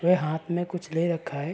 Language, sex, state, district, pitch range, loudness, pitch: Hindi, male, Uttar Pradesh, Varanasi, 160-175 Hz, -28 LUFS, 170 Hz